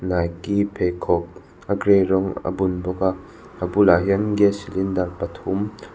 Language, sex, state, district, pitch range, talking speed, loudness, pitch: Mizo, male, Mizoram, Aizawl, 90-100 Hz, 160 wpm, -21 LUFS, 95 Hz